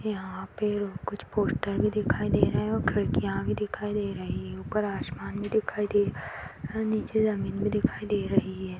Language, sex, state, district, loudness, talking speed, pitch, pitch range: Kumaoni, female, Uttarakhand, Tehri Garhwal, -29 LUFS, 205 wpm, 205 Hz, 195-215 Hz